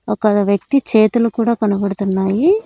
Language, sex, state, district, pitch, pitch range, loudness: Telugu, female, Andhra Pradesh, Annamaya, 215 Hz, 200-235 Hz, -16 LUFS